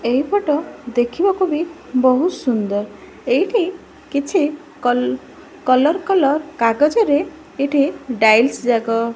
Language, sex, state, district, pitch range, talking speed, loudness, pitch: Odia, female, Odisha, Malkangiri, 245-335 Hz, 100 wpm, -18 LUFS, 285 Hz